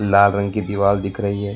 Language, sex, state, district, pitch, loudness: Hindi, male, Karnataka, Bangalore, 100 Hz, -19 LUFS